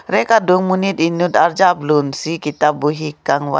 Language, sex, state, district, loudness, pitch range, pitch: Karbi, female, Assam, Karbi Anglong, -16 LUFS, 150-180 Hz, 160 Hz